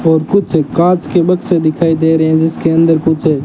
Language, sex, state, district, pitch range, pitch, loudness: Hindi, male, Rajasthan, Bikaner, 160-175 Hz, 160 Hz, -12 LUFS